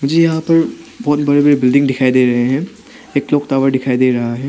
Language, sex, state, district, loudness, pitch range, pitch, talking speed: Hindi, male, Arunachal Pradesh, Papum Pare, -14 LUFS, 130-150 Hz, 140 Hz, 240 wpm